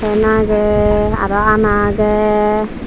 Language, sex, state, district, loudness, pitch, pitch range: Chakma, female, Tripura, Dhalai, -14 LUFS, 210 Hz, 210-215 Hz